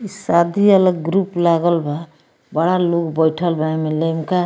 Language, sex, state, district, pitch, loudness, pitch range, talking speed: Bhojpuri, female, Bihar, Muzaffarpur, 170 Hz, -17 LUFS, 160-180 Hz, 160 wpm